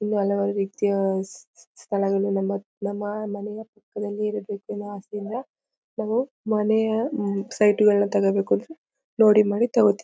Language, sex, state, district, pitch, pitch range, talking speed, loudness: Kannada, female, Karnataka, Mysore, 205 Hz, 200-220 Hz, 140 wpm, -24 LUFS